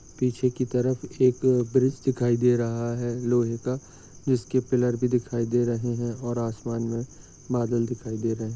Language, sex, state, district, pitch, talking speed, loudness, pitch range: Hindi, male, Maharashtra, Sindhudurg, 120 Hz, 180 wpm, -26 LUFS, 120-125 Hz